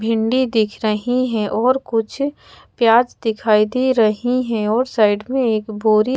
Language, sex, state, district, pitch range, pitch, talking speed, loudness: Hindi, female, Odisha, Khordha, 215-250 Hz, 225 Hz, 155 wpm, -18 LUFS